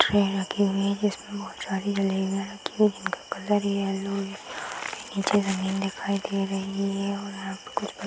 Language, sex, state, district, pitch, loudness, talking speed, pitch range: Hindi, female, Bihar, Saran, 195 Hz, -28 LUFS, 185 wpm, 195-200 Hz